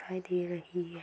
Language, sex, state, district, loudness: Hindi, female, Uttar Pradesh, Budaun, -35 LUFS